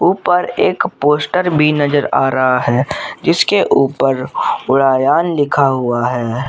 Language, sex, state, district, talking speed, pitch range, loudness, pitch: Hindi, male, Jharkhand, Garhwa, 130 wpm, 130-145 Hz, -14 LUFS, 135 Hz